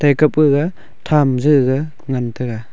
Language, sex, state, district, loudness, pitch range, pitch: Wancho, male, Arunachal Pradesh, Longding, -16 LUFS, 130-150 Hz, 140 Hz